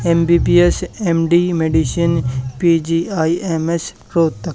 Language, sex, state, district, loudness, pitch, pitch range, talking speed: Hindi, male, Haryana, Charkhi Dadri, -16 LUFS, 165 Hz, 160-170 Hz, 65 wpm